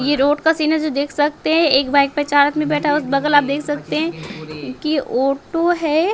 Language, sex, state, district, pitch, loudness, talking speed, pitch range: Hindi, male, Bihar, West Champaran, 290 Hz, -17 LUFS, 255 wpm, 275-305 Hz